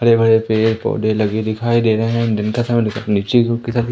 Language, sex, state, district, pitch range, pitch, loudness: Hindi, male, Madhya Pradesh, Umaria, 110-115 Hz, 110 Hz, -16 LUFS